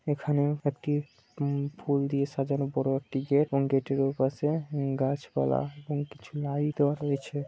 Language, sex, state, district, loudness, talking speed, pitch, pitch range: Bengali, male, West Bengal, Purulia, -29 LUFS, 150 wpm, 140 Hz, 135-145 Hz